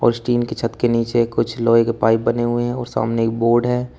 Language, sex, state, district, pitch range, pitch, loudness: Hindi, male, Uttar Pradesh, Shamli, 115-120 Hz, 120 Hz, -18 LUFS